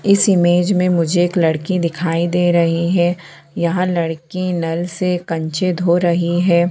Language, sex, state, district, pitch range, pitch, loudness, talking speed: Hindi, female, Jharkhand, Sahebganj, 170-180 Hz, 175 Hz, -17 LUFS, 160 wpm